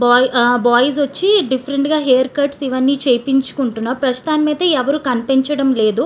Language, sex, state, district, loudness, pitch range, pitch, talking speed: Telugu, female, Andhra Pradesh, Srikakulam, -15 LUFS, 250-285 Hz, 265 Hz, 150 wpm